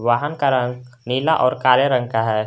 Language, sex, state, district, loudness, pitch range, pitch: Hindi, male, Jharkhand, Garhwa, -18 LUFS, 120-135 Hz, 125 Hz